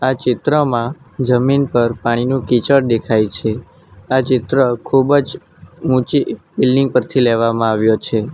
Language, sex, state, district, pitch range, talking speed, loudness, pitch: Gujarati, male, Gujarat, Valsad, 115-135 Hz, 120 wpm, -16 LUFS, 125 Hz